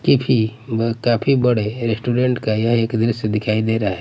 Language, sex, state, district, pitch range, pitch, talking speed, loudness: Hindi, male, Bihar, Patna, 110-120 Hz, 115 Hz, 195 wpm, -19 LUFS